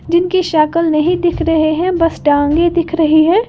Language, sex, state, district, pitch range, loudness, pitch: Hindi, female, Uttar Pradesh, Lalitpur, 315-345 Hz, -13 LUFS, 335 Hz